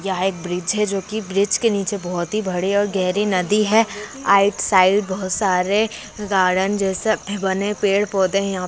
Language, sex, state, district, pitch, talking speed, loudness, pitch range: Hindi, male, Bihar, Kishanganj, 195 Hz, 205 wpm, -19 LUFS, 185-205 Hz